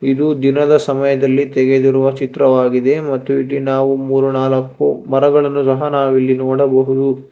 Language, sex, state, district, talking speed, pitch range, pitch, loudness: Kannada, male, Karnataka, Bangalore, 125 wpm, 130-140 Hz, 135 Hz, -14 LUFS